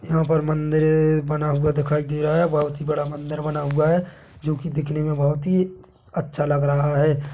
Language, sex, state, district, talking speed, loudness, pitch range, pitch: Hindi, male, Chhattisgarh, Bilaspur, 210 wpm, -22 LUFS, 150-155 Hz, 150 Hz